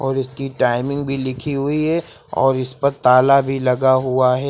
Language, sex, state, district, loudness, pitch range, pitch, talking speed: Hindi, male, Uttar Pradesh, Lucknow, -18 LUFS, 130-140 Hz, 135 Hz, 200 wpm